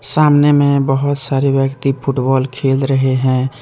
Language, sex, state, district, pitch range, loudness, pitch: Hindi, male, Jharkhand, Deoghar, 135-140 Hz, -14 LUFS, 135 Hz